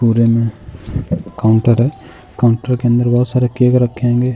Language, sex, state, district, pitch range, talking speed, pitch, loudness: Hindi, male, Uttar Pradesh, Jalaun, 115-125 Hz, 165 wpm, 120 Hz, -15 LUFS